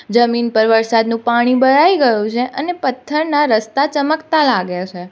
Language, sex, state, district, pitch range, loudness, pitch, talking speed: Gujarati, female, Gujarat, Valsad, 225-290 Hz, -15 LUFS, 245 Hz, 150 wpm